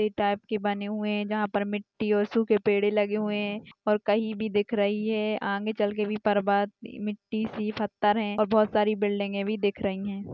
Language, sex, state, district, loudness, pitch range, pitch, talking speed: Hindi, female, Maharashtra, Aurangabad, -27 LUFS, 205-215 Hz, 210 Hz, 205 wpm